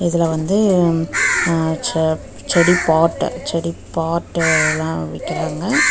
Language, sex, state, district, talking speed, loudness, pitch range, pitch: Tamil, female, Tamil Nadu, Chennai, 100 wpm, -17 LUFS, 160-170 Hz, 165 Hz